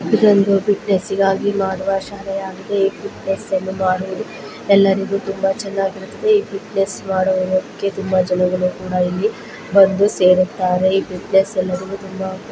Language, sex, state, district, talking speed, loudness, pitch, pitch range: Kannada, female, Karnataka, Belgaum, 120 wpm, -18 LUFS, 195 Hz, 190-200 Hz